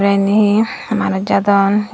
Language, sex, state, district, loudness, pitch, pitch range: Chakma, female, Tripura, Dhalai, -15 LUFS, 205 Hz, 200-215 Hz